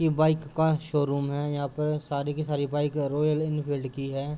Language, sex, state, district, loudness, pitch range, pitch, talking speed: Hindi, male, Uttar Pradesh, Jalaun, -28 LUFS, 140-155 Hz, 145 Hz, 220 wpm